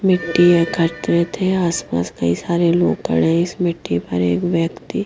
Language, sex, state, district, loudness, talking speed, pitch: Hindi, female, Haryana, Jhajjar, -18 LUFS, 180 wpm, 170 Hz